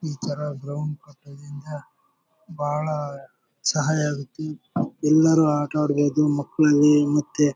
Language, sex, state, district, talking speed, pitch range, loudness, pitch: Kannada, male, Karnataka, Bellary, 95 wpm, 145-150 Hz, -22 LUFS, 150 Hz